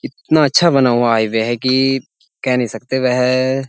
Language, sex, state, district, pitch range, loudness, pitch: Hindi, male, Uttar Pradesh, Jyotiba Phule Nagar, 120-135 Hz, -15 LUFS, 130 Hz